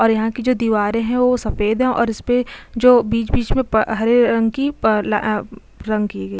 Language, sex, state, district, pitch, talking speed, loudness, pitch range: Hindi, female, Chhattisgarh, Sukma, 225 Hz, 215 wpm, -18 LUFS, 215-245 Hz